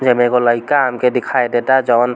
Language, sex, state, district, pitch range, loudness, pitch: Bhojpuri, male, Bihar, East Champaran, 120-130 Hz, -15 LUFS, 125 Hz